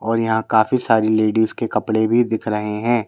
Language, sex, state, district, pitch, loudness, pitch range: Hindi, male, Madhya Pradesh, Bhopal, 110 Hz, -18 LUFS, 110-115 Hz